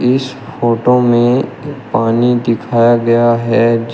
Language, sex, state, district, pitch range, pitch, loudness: Hindi, male, Uttar Pradesh, Shamli, 115-125 Hz, 120 Hz, -13 LUFS